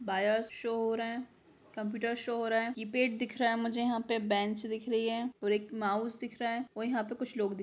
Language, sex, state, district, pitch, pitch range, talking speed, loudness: Hindi, female, Jharkhand, Sahebganj, 230 Hz, 220-235 Hz, 265 wpm, -34 LUFS